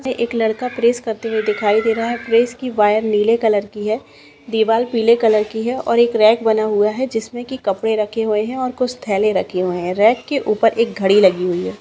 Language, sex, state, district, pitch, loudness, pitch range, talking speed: Hindi, female, Bihar, Saharsa, 225 Hz, -17 LUFS, 210-235 Hz, 245 wpm